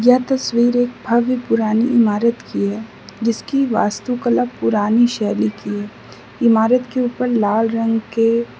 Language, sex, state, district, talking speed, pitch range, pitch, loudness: Hindi, female, Mizoram, Aizawl, 140 wpm, 215-245 Hz, 230 Hz, -17 LUFS